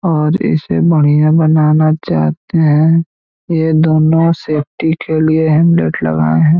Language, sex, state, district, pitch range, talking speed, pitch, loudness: Hindi, male, Bihar, East Champaran, 150-160 Hz, 125 wpm, 155 Hz, -12 LUFS